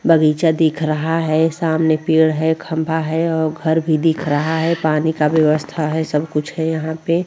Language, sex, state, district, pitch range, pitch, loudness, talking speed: Hindi, female, Bihar, Vaishali, 155-160 Hz, 160 Hz, -17 LUFS, 215 wpm